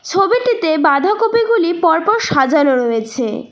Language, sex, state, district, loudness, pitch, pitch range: Bengali, female, West Bengal, Cooch Behar, -14 LUFS, 330 Hz, 270-425 Hz